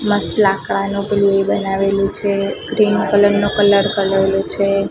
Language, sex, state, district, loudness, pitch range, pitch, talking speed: Gujarati, female, Gujarat, Gandhinagar, -16 LUFS, 195-205 Hz, 200 Hz, 145 wpm